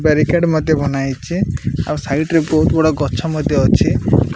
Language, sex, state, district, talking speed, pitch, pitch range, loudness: Odia, male, Odisha, Malkangiri, 150 wpm, 155 Hz, 145-160 Hz, -16 LUFS